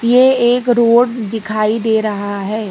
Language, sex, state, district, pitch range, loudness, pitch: Hindi, female, Karnataka, Bangalore, 215-240 Hz, -14 LUFS, 225 Hz